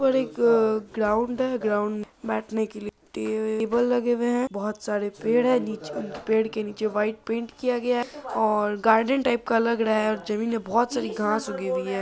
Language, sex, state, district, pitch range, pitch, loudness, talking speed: Hindi, female, Bihar, Saharsa, 210-240 Hz, 220 Hz, -25 LUFS, 205 wpm